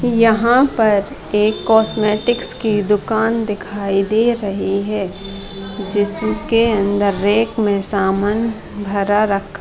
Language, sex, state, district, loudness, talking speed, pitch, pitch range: Hindi, female, Bihar, Madhepura, -16 LUFS, 110 wpm, 210 Hz, 200-225 Hz